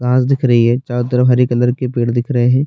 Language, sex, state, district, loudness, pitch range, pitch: Hindi, male, Chhattisgarh, Bastar, -14 LUFS, 120-125 Hz, 125 Hz